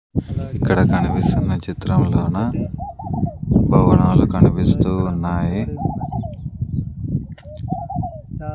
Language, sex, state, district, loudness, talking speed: Telugu, male, Andhra Pradesh, Sri Satya Sai, -19 LUFS, 40 wpm